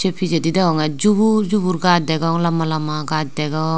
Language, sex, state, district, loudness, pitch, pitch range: Chakma, female, Tripura, Unakoti, -18 LUFS, 165 Hz, 155-185 Hz